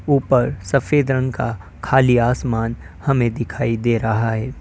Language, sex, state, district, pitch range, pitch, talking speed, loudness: Hindi, male, Uttar Pradesh, Lalitpur, 115-135 Hz, 120 Hz, 145 wpm, -19 LUFS